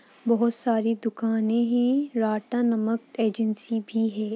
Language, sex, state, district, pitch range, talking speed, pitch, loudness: Hindi, female, Bihar, Gaya, 220-235 Hz, 110 wpm, 225 Hz, -25 LUFS